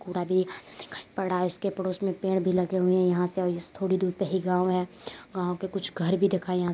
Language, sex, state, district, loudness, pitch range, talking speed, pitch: Hindi, female, Uttar Pradesh, Deoria, -28 LUFS, 180-190 Hz, 265 wpm, 185 Hz